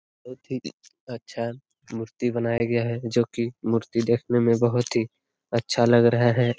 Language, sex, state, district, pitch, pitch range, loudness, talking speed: Hindi, male, Jharkhand, Sahebganj, 120 Hz, 115-120 Hz, -24 LUFS, 165 wpm